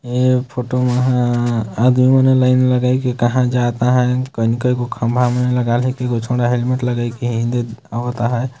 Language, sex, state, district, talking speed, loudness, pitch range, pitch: Hindi, male, Chhattisgarh, Jashpur, 180 wpm, -17 LUFS, 120-125 Hz, 125 Hz